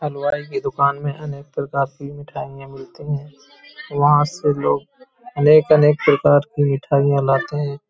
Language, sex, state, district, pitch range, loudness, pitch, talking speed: Hindi, male, Uttar Pradesh, Hamirpur, 140-150 Hz, -18 LUFS, 145 Hz, 150 wpm